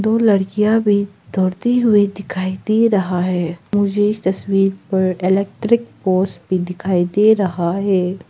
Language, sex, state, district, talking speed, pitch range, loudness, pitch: Hindi, female, Arunachal Pradesh, Papum Pare, 145 wpm, 185-210 Hz, -17 LUFS, 195 Hz